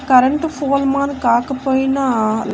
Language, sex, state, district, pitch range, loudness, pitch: Telugu, female, Andhra Pradesh, Annamaya, 250-275 Hz, -16 LUFS, 270 Hz